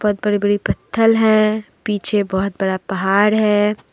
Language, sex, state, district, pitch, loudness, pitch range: Hindi, female, Jharkhand, Deoghar, 205 Hz, -17 LUFS, 200-215 Hz